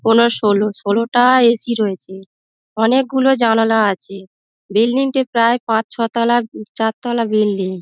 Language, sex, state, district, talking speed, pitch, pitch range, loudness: Bengali, female, West Bengal, Dakshin Dinajpur, 155 wpm, 225 Hz, 210-240 Hz, -16 LUFS